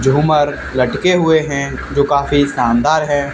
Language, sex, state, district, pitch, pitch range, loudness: Hindi, male, Haryana, Charkhi Dadri, 145 Hz, 140-150 Hz, -15 LUFS